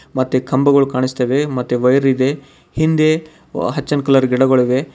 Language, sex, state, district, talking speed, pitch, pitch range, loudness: Kannada, male, Karnataka, Bidar, 145 wpm, 135 Hz, 130-145 Hz, -16 LUFS